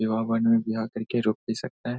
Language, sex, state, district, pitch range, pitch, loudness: Hindi, male, Bihar, Saharsa, 110-115 Hz, 115 Hz, -26 LUFS